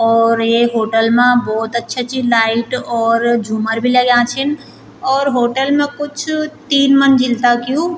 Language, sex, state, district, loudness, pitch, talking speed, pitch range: Garhwali, female, Uttarakhand, Tehri Garhwal, -14 LUFS, 245 Hz, 160 wpm, 230-275 Hz